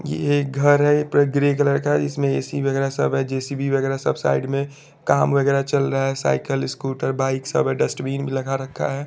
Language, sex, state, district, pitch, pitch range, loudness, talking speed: Hindi, male, Chandigarh, Chandigarh, 135 Hz, 135-140 Hz, -21 LUFS, 225 wpm